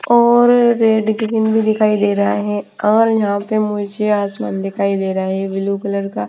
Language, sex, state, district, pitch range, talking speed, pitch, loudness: Hindi, female, Bihar, Patna, 200-220 Hz, 210 wpm, 210 Hz, -16 LUFS